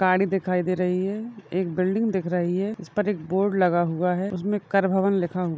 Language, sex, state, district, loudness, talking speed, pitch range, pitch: Hindi, female, Rajasthan, Churu, -24 LUFS, 245 wpm, 180-195 Hz, 185 Hz